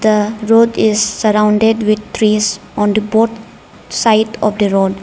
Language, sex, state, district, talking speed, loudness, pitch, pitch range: English, female, Arunachal Pradesh, Lower Dibang Valley, 155 wpm, -13 LUFS, 215 Hz, 210-225 Hz